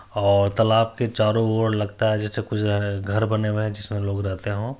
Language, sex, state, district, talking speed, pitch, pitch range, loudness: Hindi, male, Bihar, Supaul, 215 wpm, 105 Hz, 105-110 Hz, -22 LUFS